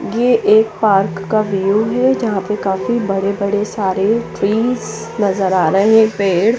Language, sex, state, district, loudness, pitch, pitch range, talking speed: Hindi, female, Chandigarh, Chandigarh, -15 LUFS, 210 Hz, 195-220 Hz, 155 wpm